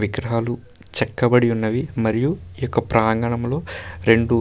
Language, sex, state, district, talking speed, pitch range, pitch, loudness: Telugu, male, Karnataka, Bellary, 110 wpm, 110-125 Hz, 115 Hz, -20 LUFS